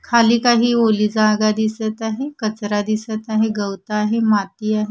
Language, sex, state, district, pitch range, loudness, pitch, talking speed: Marathi, female, Maharashtra, Washim, 210-225 Hz, -18 LUFS, 215 Hz, 160 wpm